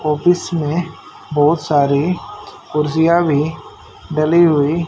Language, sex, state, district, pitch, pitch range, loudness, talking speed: Hindi, male, Haryana, Jhajjar, 155 Hz, 150-170 Hz, -16 LUFS, 100 wpm